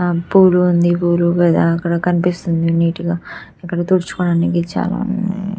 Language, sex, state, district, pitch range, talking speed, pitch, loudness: Telugu, female, Telangana, Karimnagar, 170-180 Hz, 130 wpm, 175 Hz, -16 LUFS